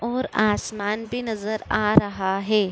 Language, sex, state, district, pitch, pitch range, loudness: Hindi, female, Uttar Pradesh, Budaun, 215 Hz, 205-225 Hz, -23 LUFS